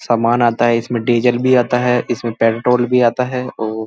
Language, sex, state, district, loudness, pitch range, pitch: Hindi, male, Uttar Pradesh, Muzaffarnagar, -15 LUFS, 115-125 Hz, 120 Hz